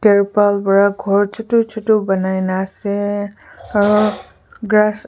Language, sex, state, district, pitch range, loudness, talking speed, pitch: Nagamese, female, Nagaland, Kohima, 200-215 Hz, -16 LUFS, 130 wpm, 205 Hz